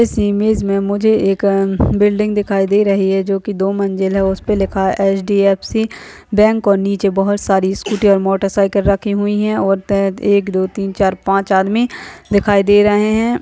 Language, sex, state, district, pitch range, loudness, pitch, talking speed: Hindi, female, West Bengal, Dakshin Dinajpur, 195-210 Hz, -15 LUFS, 200 Hz, 195 wpm